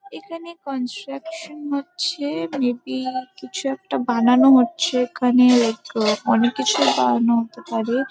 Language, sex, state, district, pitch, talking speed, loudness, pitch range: Bengali, female, West Bengal, Kolkata, 250 Hz, 110 wpm, -20 LUFS, 230-280 Hz